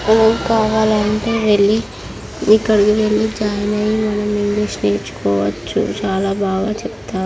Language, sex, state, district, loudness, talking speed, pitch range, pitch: Telugu, female, Andhra Pradesh, Srikakulam, -17 LUFS, 100 wpm, 195-215 Hz, 210 Hz